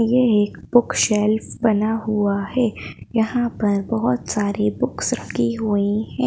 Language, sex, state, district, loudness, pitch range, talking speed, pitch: Hindi, female, Madhya Pradesh, Bhopal, -20 LUFS, 205-230 Hz, 145 wpm, 215 Hz